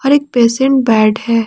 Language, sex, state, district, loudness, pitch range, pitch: Hindi, female, Jharkhand, Ranchi, -12 LUFS, 225-270 Hz, 240 Hz